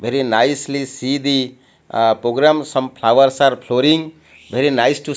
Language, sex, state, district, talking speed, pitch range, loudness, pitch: English, male, Odisha, Malkangiri, 160 wpm, 125-145 Hz, -16 LUFS, 135 Hz